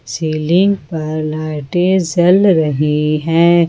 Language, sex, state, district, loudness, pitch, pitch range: Hindi, female, Jharkhand, Ranchi, -14 LUFS, 165 Hz, 155-175 Hz